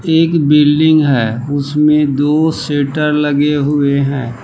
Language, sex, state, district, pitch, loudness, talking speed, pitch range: Hindi, male, Jharkhand, Palamu, 145 Hz, -13 LUFS, 120 wpm, 140-150 Hz